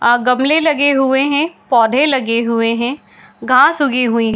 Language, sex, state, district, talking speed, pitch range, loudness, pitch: Hindi, female, Bihar, Saharsa, 180 wpm, 235-285 Hz, -13 LUFS, 255 Hz